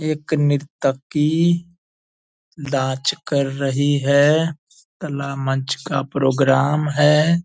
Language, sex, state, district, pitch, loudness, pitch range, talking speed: Hindi, male, Bihar, Purnia, 145 Hz, -19 LUFS, 140-155 Hz, 95 wpm